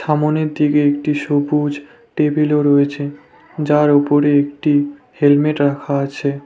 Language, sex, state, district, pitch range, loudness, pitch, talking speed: Bengali, male, West Bengal, Cooch Behar, 145-150 Hz, -16 LUFS, 145 Hz, 120 wpm